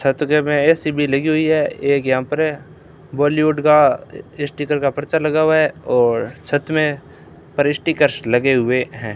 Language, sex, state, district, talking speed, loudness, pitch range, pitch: Hindi, male, Rajasthan, Bikaner, 175 wpm, -17 LUFS, 140-155 Hz, 145 Hz